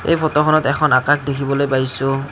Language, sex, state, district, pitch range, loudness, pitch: Assamese, male, Assam, Kamrup Metropolitan, 135-155 Hz, -16 LUFS, 140 Hz